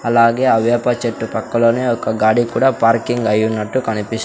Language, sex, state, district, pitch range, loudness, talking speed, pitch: Telugu, male, Andhra Pradesh, Sri Satya Sai, 110-120 Hz, -16 LUFS, 155 wpm, 115 Hz